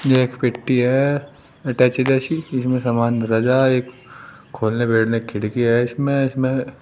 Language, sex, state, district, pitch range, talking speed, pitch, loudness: Hindi, male, Uttar Pradesh, Shamli, 120-135 Hz, 160 wpm, 125 Hz, -19 LUFS